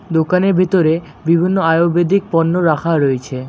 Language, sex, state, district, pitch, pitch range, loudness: Bengali, male, West Bengal, Alipurduar, 165 Hz, 160-180 Hz, -15 LUFS